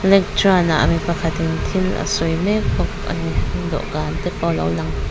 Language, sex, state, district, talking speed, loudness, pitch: Mizo, female, Mizoram, Aizawl, 190 wpm, -19 LUFS, 165 Hz